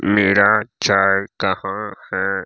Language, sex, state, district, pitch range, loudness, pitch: Maithili, male, Bihar, Saharsa, 95-105 Hz, -17 LUFS, 100 Hz